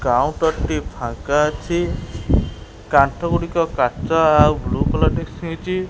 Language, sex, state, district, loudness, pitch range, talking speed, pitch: Odia, male, Odisha, Khordha, -19 LUFS, 125-165 Hz, 110 wpm, 150 Hz